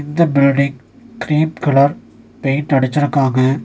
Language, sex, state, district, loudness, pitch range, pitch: Tamil, male, Tamil Nadu, Nilgiris, -15 LUFS, 135-150 Hz, 140 Hz